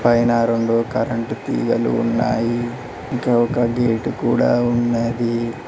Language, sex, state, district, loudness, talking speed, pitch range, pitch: Telugu, male, Telangana, Mahabubabad, -19 LUFS, 105 wpm, 115-120 Hz, 120 Hz